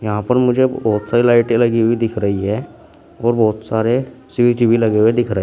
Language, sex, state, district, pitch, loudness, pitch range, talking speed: Hindi, male, Uttar Pradesh, Shamli, 115 Hz, -16 LUFS, 110-120 Hz, 230 wpm